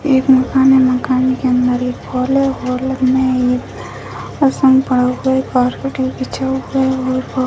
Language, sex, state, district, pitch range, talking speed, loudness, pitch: Hindi, female, Bihar, Bhagalpur, 255-265 Hz, 195 wpm, -15 LUFS, 260 Hz